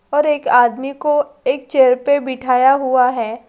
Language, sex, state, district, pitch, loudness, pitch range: Hindi, female, Bihar, Gaya, 265 Hz, -15 LUFS, 250-285 Hz